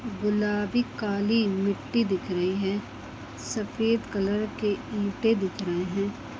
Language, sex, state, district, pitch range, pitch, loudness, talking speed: Hindi, female, Chhattisgarh, Bastar, 190-215 Hz, 205 Hz, -27 LUFS, 120 wpm